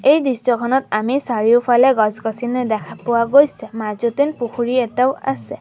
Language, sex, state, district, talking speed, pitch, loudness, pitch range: Assamese, female, Assam, Sonitpur, 140 wpm, 240 Hz, -17 LUFS, 225-260 Hz